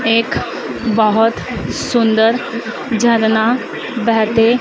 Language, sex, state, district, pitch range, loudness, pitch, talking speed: Hindi, female, Madhya Pradesh, Dhar, 225-235 Hz, -15 LUFS, 230 Hz, 65 wpm